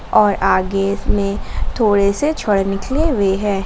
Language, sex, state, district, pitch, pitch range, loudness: Hindi, female, Jharkhand, Garhwa, 200 Hz, 195-210 Hz, -17 LUFS